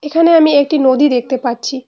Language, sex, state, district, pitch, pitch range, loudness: Bengali, female, West Bengal, Cooch Behar, 275 Hz, 260-300 Hz, -12 LUFS